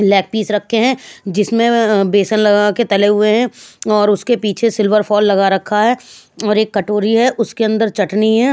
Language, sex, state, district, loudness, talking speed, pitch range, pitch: Hindi, female, Bihar, Patna, -14 LUFS, 205 wpm, 205-230 Hz, 210 Hz